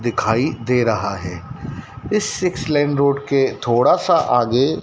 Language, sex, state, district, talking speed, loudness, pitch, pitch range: Hindi, male, Madhya Pradesh, Dhar, 150 wpm, -18 LUFS, 135 Hz, 115-145 Hz